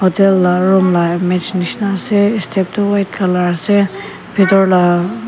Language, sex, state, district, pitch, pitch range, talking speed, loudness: Nagamese, female, Nagaland, Kohima, 190 Hz, 180-200 Hz, 160 wpm, -14 LUFS